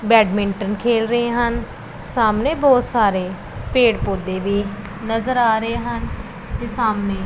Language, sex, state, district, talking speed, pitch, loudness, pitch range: Punjabi, female, Punjab, Pathankot, 130 wpm, 225 Hz, -19 LUFS, 200-235 Hz